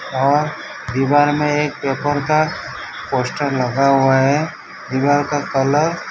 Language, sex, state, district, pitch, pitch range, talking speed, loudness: Hindi, male, Gujarat, Valsad, 145 Hz, 135-150 Hz, 135 wpm, -17 LUFS